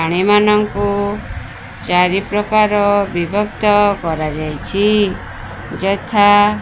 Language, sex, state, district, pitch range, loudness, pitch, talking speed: Odia, female, Odisha, Sambalpur, 155-205 Hz, -15 LUFS, 200 Hz, 55 wpm